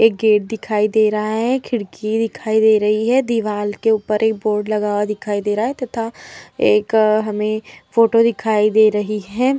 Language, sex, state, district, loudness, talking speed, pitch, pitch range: Hindi, female, Uttar Pradesh, Hamirpur, -17 LUFS, 190 wpm, 215 Hz, 210-225 Hz